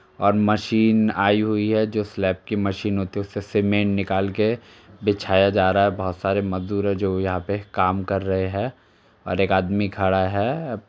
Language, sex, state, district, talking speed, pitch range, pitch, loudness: Hindi, male, Uttar Pradesh, Jalaun, 195 wpm, 95-105 Hz, 100 Hz, -22 LUFS